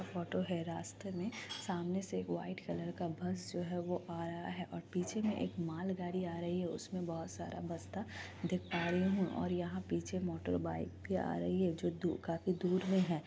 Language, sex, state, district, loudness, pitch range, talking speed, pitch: Hindi, female, Bihar, Kishanganj, -39 LUFS, 160-180 Hz, 210 wpm, 175 Hz